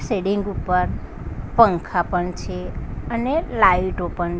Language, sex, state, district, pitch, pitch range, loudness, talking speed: Gujarati, female, Gujarat, Valsad, 180 Hz, 175-205 Hz, -21 LUFS, 110 wpm